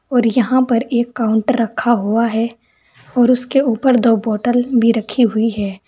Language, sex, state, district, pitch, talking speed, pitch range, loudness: Hindi, female, Uttar Pradesh, Saharanpur, 235 Hz, 175 wpm, 225-245 Hz, -16 LUFS